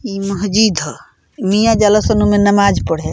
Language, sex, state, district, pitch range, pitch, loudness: Bhojpuri, female, Bihar, Muzaffarpur, 195-215 Hz, 205 Hz, -13 LUFS